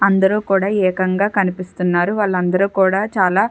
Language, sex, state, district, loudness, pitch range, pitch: Telugu, female, Andhra Pradesh, Chittoor, -17 LUFS, 185-200 Hz, 195 Hz